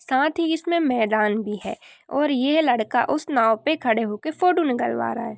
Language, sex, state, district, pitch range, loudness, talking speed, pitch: Hindi, female, Bihar, Bhagalpur, 220-315 Hz, -22 LUFS, 200 wpm, 255 Hz